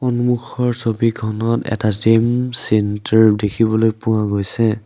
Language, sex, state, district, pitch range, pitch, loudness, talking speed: Assamese, male, Assam, Sonitpur, 110-115 Hz, 110 Hz, -17 LUFS, 100 wpm